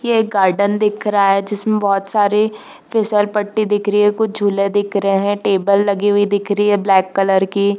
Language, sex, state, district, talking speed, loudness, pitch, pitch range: Hindi, female, Chhattisgarh, Bilaspur, 215 wpm, -16 LUFS, 205 Hz, 200-210 Hz